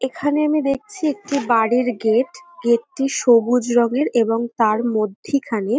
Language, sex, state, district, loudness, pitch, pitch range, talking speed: Bengali, female, West Bengal, North 24 Parganas, -19 LUFS, 245 Hz, 230-280 Hz, 145 wpm